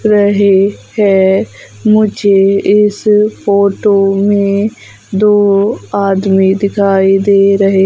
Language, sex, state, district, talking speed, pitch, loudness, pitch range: Hindi, female, Madhya Pradesh, Umaria, 90 wpm, 200 Hz, -10 LUFS, 195-205 Hz